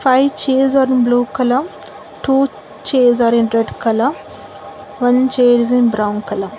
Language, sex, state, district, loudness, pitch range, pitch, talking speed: English, female, Karnataka, Bangalore, -15 LUFS, 225-260 Hz, 245 Hz, 165 wpm